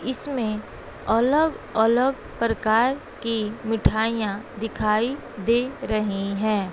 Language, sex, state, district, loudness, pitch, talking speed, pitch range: Hindi, female, Bihar, West Champaran, -24 LUFS, 225 Hz, 90 wpm, 215-245 Hz